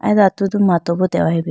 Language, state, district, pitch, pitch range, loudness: Idu Mishmi, Arunachal Pradesh, Lower Dibang Valley, 185 Hz, 170-200 Hz, -16 LUFS